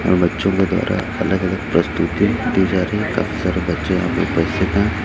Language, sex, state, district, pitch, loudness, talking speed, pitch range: Hindi, male, Chhattisgarh, Raipur, 95 Hz, -18 LUFS, 215 wpm, 85-100 Hz